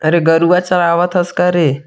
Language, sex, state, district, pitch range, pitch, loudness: Chhattisgarhi, male, Chhattisgarh, Sarguja, 165-180 Hz, 170 Hz, -13 LUFS